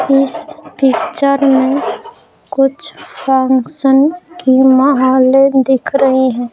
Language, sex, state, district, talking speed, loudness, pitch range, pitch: Hindi, female, Bihar, Patna, 90 wpm, -12 LUFS, 260-280 Hz, 270 Hz